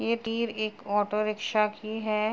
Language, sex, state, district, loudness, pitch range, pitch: Hindi, female, Uttar Pradesh, Jalaun, -29 LUFS, 210-220 Hz, 215 Hz